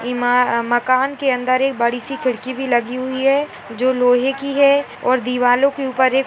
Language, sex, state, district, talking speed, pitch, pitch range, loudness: Hindi, female, Bihar, Purnia, 190 wpm, 255 Hz, 245-270 Hz, -17 LUFS